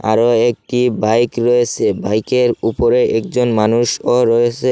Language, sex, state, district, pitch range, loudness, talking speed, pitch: Bengali, male, Assam, Hailakandi, 110-120 Hz, -15 LUFS, 115 wpm, 120 Hz